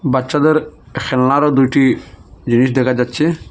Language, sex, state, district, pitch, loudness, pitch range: Bengali, male, Assam, Hailakandi, 130 Hz, -15 LUFS, 125-140 Hz